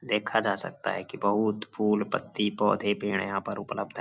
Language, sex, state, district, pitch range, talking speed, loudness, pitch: Hindi, male, Uttar Pradesh, Gorakhpur, 100-105 Hz, 210 wpm, -28 LUFS, 105 Hz